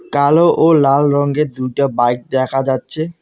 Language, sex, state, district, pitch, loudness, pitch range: Bengali, male, West Bengal, Alipurduar, 140 Hz, -14 LUFS, 130-155 Hz